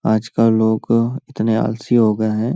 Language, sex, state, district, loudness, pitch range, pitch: Hindi, male, Uttar Pradesh, Hamirpur, -17 LUFS, 110-115 Hz, 110 Hz